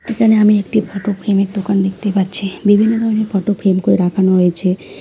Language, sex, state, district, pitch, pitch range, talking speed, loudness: Bengali, female, West Bengal, Alipurduar, 200 Hz, 190-210 Hz, 190 wpm, -15 LUFS